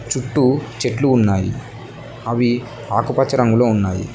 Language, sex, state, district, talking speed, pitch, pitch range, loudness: Telugu, male, Telangana, Mahabubabad, 100 wpm, 120 Hz, 115-130 Hz, -18 LUFS